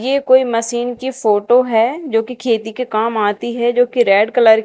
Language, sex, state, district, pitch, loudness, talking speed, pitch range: Hindi, female, Madhya Pradesh, Dhar, 240 Hz, -15 LUFS, 230 wpm, 225-250 Hz